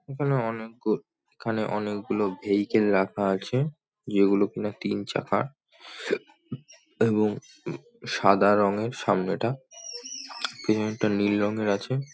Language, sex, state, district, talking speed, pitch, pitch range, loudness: Bengali, male, West Bengal, North 24 Parganas, 110 wpm, 110 Hz, 100-145 Hz, -26 LUFS